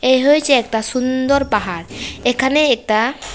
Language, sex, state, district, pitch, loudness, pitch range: Bengali, female, Tripura, West Tripura, 255 Hz, -16 LUFS, 225-275 Hz